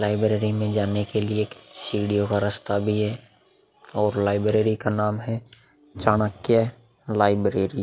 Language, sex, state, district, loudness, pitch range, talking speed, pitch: Hindi, male, Uttar Pradesh, Muzaffarnagar, -24 LUFS, 105-110 Hz, 145 wpm, 105 Hz